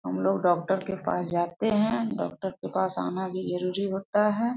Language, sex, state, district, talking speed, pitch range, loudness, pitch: Hindi, female, Jharkhand, Sahebganj, 185 wpm, 175-210 Hz, -28 LUFS, 190 Hz